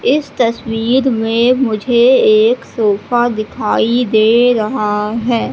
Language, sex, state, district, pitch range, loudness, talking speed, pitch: Hindi, female, Madhya Pradesh, Katni, 225-255 Hz, -13 LUFS, 110 wpm, 235 Hz